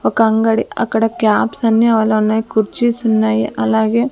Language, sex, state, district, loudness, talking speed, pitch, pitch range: Telugu, female, Andhra Pradesh, Sri Satya Sai, -15 LUFS, 130 wpm, 220 Hz, 215-225 Hz